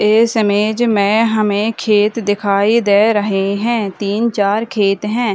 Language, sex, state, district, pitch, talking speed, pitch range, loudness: Hindi, female, Bihar, Madhepura, 210 Hz, 145 wpm, 205-225 Hz, -14 LUFS